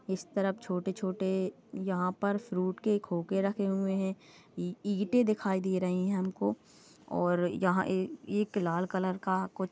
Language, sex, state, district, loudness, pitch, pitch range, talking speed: Hindi, female, Goa, North and South Goa, -32 LUFS, 190 Hz, 185-200 Hz, 165 wpm